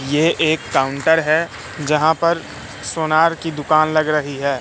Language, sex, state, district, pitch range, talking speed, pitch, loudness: Hindi, male, Madhya Pradesh, Katni, 145-160 Hz, 155 wpm, 155 Hz, -17 LUFS